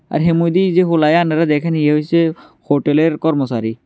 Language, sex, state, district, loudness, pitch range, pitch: Bengali, male, Tripura, West Tripura, -15 LUFS, 150-165 Hz, 160 Hz